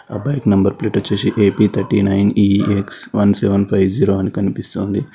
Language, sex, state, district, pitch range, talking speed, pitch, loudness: Telugu, male, Telangana, Hyderabad, 100-105 Hz, 185 wpm, 100 Hz, -16 LUFS